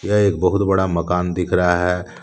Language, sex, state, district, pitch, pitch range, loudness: Hindi, male, Jharkhand, Deoghar, 90 Hz, 90-95 Hz, -18 LUFS